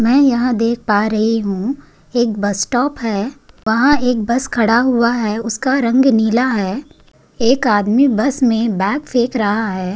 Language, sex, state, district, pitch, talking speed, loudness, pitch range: Hindi, female, Maharashtra, Chandrapur, 235 Hz, 170 wpm, -16 LUFS, 220-255 Hz